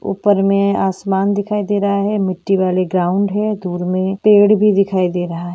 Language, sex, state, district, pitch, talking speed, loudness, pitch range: Hindi, female, Bihar, Gaya, 195 Hz, 205 wpm, -16 LUFS, 185-205 Hz